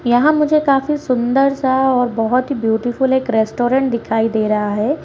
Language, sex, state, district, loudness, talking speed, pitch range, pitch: Hindi, female, Bihar, Kishanganj, -16 LUFS, 190 wpm, 225-270 Hz, 250 Hz